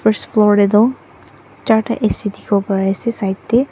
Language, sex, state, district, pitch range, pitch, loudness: Nagamese, female, Nagaland, Dimapur, 200-230 Hz, 215 Hz, -16 LUFS